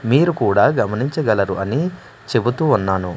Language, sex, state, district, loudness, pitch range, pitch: Telugu, male, Andhra Pradesh, Manyam, -18 LUFS, 100-150 Hz, 120 Hz